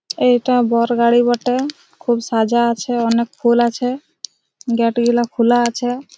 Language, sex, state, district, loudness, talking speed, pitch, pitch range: Bengali, female, West Bengal, Jhargram, -16 LUFS, 135 wpm, 240 Hz, 235-250 Hz